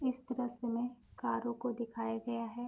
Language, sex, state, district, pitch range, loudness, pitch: Hindi, female, Bihar, Sitamarhi, 235-245 Hz, -39 LUFS, 240 Hz